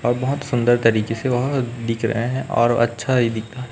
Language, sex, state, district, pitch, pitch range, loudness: Hindi, male, Chhattisgarh, Raipur, 120 Hz, 115-125 Hz, -20 LUFS